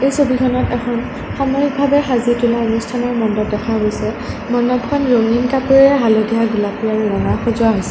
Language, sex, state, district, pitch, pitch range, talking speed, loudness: Assamese, female, Assam, Sonitpur, 240 Hz, 225-260 Hz, 150 wpm, -16 LUFS